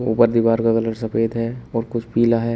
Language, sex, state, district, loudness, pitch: Hindi, male, Uttar Pradesh, Shamli, -19 LUFS, 115 Hz